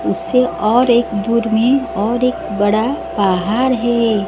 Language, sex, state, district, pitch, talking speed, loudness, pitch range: Hindi, female, Odisha, Sambalpur, 230 Hz, 140 wpm, -15 LUFS, 215-245 Hz